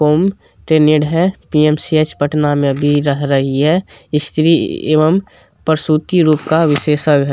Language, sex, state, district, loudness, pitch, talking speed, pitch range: Hindi, male, Bihar, Supaul, -14 LUFS, 155 Hz, 125 wpm, 145-160 Hz